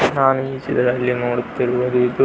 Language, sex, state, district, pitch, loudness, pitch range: Kannada, male, Karnataka, Belgaum, 125 Hz, -19 LUFS, 125-135 Hz